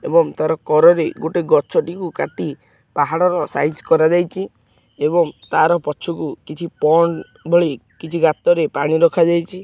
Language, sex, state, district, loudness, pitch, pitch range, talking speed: Odia, male, Odisha, Khordha, -17 LUFS, 165 Hz, 155-170 Hz, 130 wpm